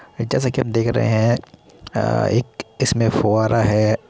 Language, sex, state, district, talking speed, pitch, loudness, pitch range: Hindi, male, Uttar Pradesh, Muzaffarnagar, 160 wpm, 115 Hz, -19 LUFS, 110-120 Hz